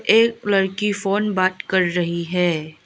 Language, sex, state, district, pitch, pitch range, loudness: Hindi, female, Arunachal Pradesh, Lower Dibang Valley, 190 Hz, 175-205 Hz, -20 LUFS